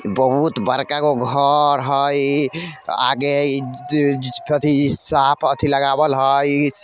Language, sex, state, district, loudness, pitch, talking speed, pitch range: Maithili, male, Bihar, Vaishali, -17 LUFS, 140 Hz, 125 wpm, 140-145 Hz